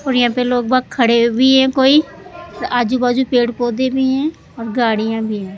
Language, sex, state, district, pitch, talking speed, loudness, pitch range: Hindi, female, Rajasthan, Jaipur, 250 Hz, 185 wpm, -15 LUFS, 235-265 Hz